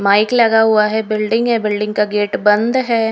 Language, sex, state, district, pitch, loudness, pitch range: Hindi, female, Haryana, Rohtak, 215 Hz, -15 LUFS, 210-230 Hz